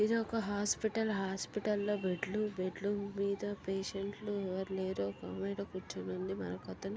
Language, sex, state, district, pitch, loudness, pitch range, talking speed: Telugu, female, Andhra Pradesh, Guntur, 200 Hz, -37 LUFS, 185-205 Hz, 170 wpm